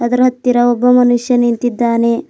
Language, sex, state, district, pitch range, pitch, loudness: Kannada, female, Karnataka, Bidar, 235-250 Hz, 245 Hz, -13 LUFS